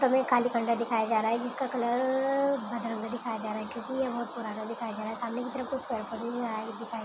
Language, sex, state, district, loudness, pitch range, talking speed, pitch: Hindi, female, Chhattisgarh, Kabirdham, -31 LUFS, 225-250 Hz, 255 wpm, 235 Hz